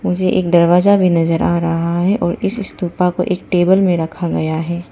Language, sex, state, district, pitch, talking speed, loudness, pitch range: Hindi, female, Arunachal Pradesh, Papum Pare, 175 Hz, 220 wpm, -15 LUFS, 170-185 Hz